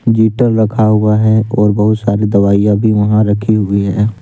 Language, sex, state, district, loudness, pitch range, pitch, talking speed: Hindi, male, Jharkhand, Deoghar, -12 LUFS, 105-110 Hz, 105 Hz, 185 wpm